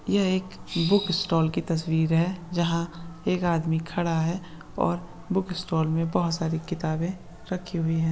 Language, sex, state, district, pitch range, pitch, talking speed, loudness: Hindi, male, Andhra Pradesh, Krishna, 165-180 Hz, 170 Hz, 160 wpm, -27 LUFS